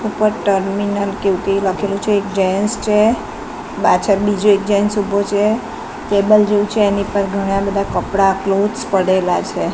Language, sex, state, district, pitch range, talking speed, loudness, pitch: Gujarati, female, Gujarat, Gandhinagar, 195-210 Hz, 165 wpm, -16 LUFS, 200 Hz